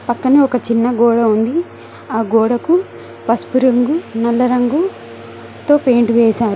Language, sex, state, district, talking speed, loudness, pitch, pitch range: Telugu, female, Telangana, Mahabubabad, 120 wpm, -14 LUFS, 245 Hz, 230-270 Hz